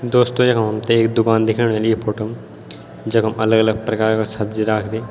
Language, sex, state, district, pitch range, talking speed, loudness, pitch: Garhwali, male, Uttarakhand, Tehri Garhwal, 110-115 Hz, 200 wpm, -18 LUFS, 110 Hz